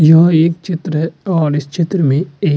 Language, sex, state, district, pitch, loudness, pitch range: Hindi, male, Uttarakhand, Tehri Garhwal, 165 Hz, -14 LUFS, 150-170 Hz